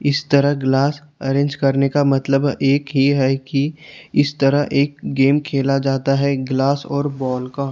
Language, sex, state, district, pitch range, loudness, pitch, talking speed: Hindi, male, Maharashtra, Gondia, 135-145 Hz, -18 LUFS, 140 Hz, 170 wpm